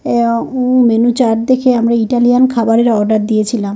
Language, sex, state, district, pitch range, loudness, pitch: Bengali, male, West Bengal, North 24 Parganas, 225-245 Hz, -12 LUFS, 235 Hz